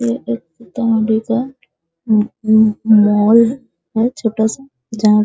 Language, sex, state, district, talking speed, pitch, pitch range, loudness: Hindi, female, Bihar, Sitamarhi, 115 wpm, 225 Hz, 215-235 Hz, -15 LUFS